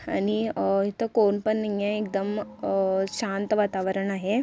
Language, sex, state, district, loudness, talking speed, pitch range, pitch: Marathi, female, Karnataka, Belgaum, -26 LUFS, 150 wpm, 195-215 Hz, 205 Hz